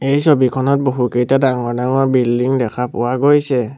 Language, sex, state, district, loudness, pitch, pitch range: Assamese, male, Assam, Sonitpur, -15 LUFS, 130 Hz, 125-135 Hz